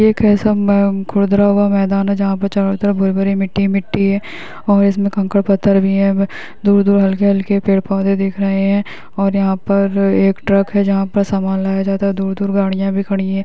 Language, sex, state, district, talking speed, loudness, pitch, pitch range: Hindi, female, Bihar, Vaishali, 195 wpm, -15 LUFS, 195 Hz, 195-200 Hz